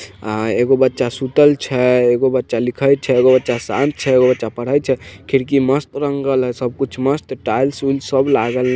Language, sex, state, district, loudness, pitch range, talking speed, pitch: Maithili, male, Bihar, Samastipur, -16 LUFS, 125-135 Hz, 190 wpm, 130 Hz